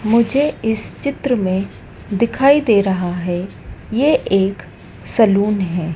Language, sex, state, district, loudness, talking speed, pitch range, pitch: Hindi, female, Madhya Pradesh, Dhar, -17 LUFS, 120 wpm, 180-235 Hz, 200 Hz